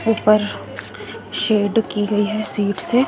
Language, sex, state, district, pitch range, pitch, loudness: Hindi, female, Chhattisgarh, Raipur, 210-225 Hz, 215 Hz, -19 LUFS